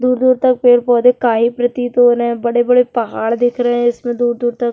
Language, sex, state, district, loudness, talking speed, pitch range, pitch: Hindi, female, Uttarakhand, Tehri Garhwal, -14 LUFS, 205 wpm, 240-245 Hz, 245 Hz